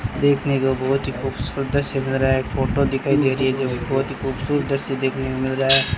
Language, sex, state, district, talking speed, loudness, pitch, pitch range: Hindi, male, Rajasthan, Bikaner, 240 wpm, -21 LUFS, 135 Hz, 130-135 Hz